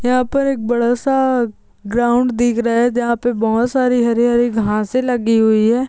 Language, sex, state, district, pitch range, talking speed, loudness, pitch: Hindi, female, Rajasthan, Nagaur, 230-250 Hz, 195 wpm, -16 LUFS, 240 Hz